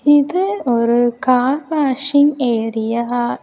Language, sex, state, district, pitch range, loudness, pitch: Tamil, female, Tamil Nadu, Kanyakumari, 235-285 Hz, -16 LUFS, 250 Hz